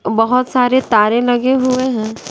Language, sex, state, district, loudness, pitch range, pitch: Hindi, female, Bihar, West Champaran, -14 LUFS, 225-255 Hz, 245 Hz